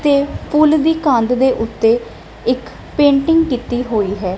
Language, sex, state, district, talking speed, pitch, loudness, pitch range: Punjabi, female, Punjab, Kapurthala, 150 wpm, 255 Hz, -15 LUFS, 230-295 Hz